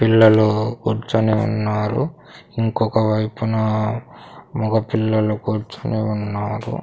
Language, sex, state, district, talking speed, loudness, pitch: Telugu, male, Andhra Pradesh, Sri Satya Sai, 70 wpm, -20 LUFS, 110 Hz